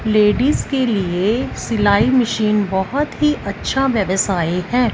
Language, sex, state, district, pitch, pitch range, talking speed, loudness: Hindi, female, Punjab, Fazilka, 215 Hz, 195-255 Hz, 120 wpm, -17 LUFS